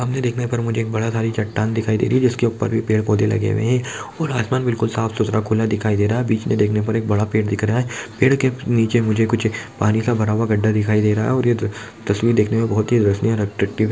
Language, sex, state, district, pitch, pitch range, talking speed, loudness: Hindi, male, Bihar, Jamui, 110 Hz, 110-120 Hz, 265 wpm, -19 LUFS